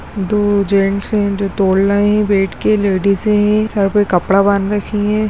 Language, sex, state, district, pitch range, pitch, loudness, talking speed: Hindi, female, Bihar, Gaya, 195-210 Hz, 200 Hz, -14 LUFS, 190 wpm